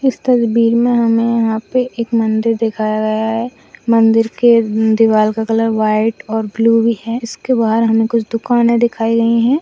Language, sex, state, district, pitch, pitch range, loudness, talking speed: Hindi, female, Bihar, Saharsa, 230 Hz, 220-235 Hz, -14 LUFS, 180 wpm